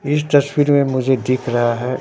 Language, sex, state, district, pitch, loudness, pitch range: Hindi, male, Bihar, Katihar, 130 Hz, -17 LUFS, 125-145 Hz